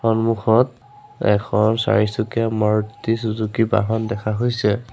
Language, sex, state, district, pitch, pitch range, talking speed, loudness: Assamese, male, Assam, Sonitpur, 110 Hz, 110-115 Hz, 95 wpm, -20 LUFS